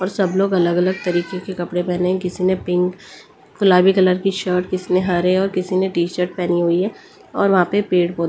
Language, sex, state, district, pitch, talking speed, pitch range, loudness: Hindi, female, Delhi, New Delhi, 185 Hz, 225 wpm, 180-190 Hz, -18 LUFS